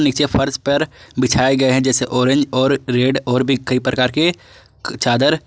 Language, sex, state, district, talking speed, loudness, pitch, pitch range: Hindi, male, Jharkhand, Garhwa, 175 wpm, -16 LUFS, 130 Hz, 125-140 Hz